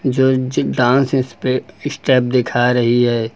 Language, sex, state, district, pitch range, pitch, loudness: Hindi, male, Uttar Pradesh, Lucknow, 120-130 Hz, 130 Hz, -16 LUFS